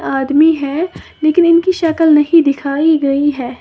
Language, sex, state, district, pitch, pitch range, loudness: Hindi, female, Uttar Pradesh, Lalitpur, 305 Hz, 280-325 Hz, -12 LUFS